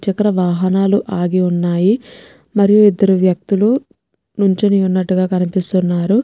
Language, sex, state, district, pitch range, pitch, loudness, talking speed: Telugu, female, Telangana, Nalgonda, 185-205 Hz, 190 Hz, -15 LUFS, 75 wpm